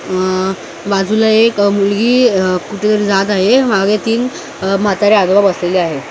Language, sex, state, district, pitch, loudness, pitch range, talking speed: Marathi, male, Maharashtra, Mumbai Suburban, 200 Hz, -13 LUFS, 190-215 Hz, 135 wpm